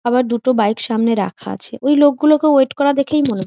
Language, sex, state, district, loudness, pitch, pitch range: Bengali, female, West Bengal, Jhargram, -15 LUFS, 255 Hz, 230-285 Hz